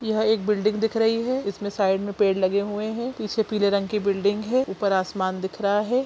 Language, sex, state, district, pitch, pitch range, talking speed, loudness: Hindi, female, Chhattisgarh, Sukma, 210 Hz, 200-220 Hz, 245 wpm, -24 LUFS